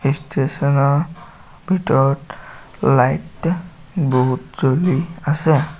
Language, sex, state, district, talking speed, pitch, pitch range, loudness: Assamese, male, Assam, Sonitpur, 60 wpm, 150 Hz, 140-170 Hz, -18 LUFS